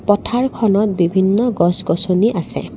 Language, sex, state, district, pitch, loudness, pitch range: Assamese, female, Assam, Kamrup Metropolitan, 205 Hz, -16 LUFS, 185-220 Hz